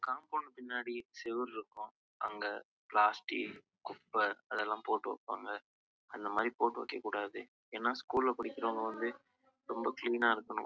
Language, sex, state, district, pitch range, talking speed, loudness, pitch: Tamil, male, Karnataka, Chamarajanagar, 115-125 Hz, 110 wpm, -37 LUFS, 120 Hz